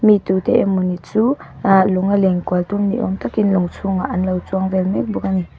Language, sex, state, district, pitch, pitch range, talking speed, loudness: Mizo, female, Mizoram, Aizawl, 190 Hz, 180-200 Hz, 215 wpm, -18 LUFS